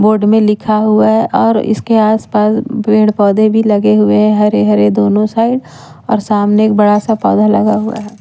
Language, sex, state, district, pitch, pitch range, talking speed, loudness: Hindi, female, Bihar, Katihar, 215 Hz, 205-220 Hz, 190 wpm, -11 LUFS